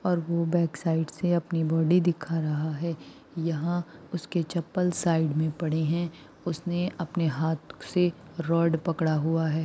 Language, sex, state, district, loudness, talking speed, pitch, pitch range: Hindi, female, Maharashtra, Aurangabad, -28 LUFS, 155 wpm, 165 Hz, 160-175 Hz